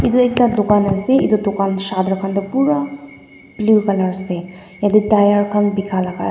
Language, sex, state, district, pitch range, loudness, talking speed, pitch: Nagamese, female, Nagaland, Dimapur, 195-220 Hz, -16 LUFS, 200 wpm, 205 Hz